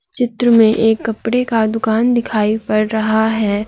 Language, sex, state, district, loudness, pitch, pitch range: Hindi, female, Jharkhand, Garhwa, -15 LUFS, 220 Hz, 220-235 Hz